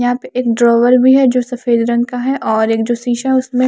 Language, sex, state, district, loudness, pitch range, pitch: Hindi, female, Chandigarh, Chandigarh, -13 LUFS, 235-255 Hz, 245 Hz